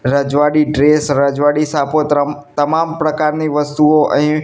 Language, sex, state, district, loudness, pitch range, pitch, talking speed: Gujarati, male, Gujarat, Gandhinagar, -14 LUFS, 145-155 Hz, 150 Hz, 110 wpm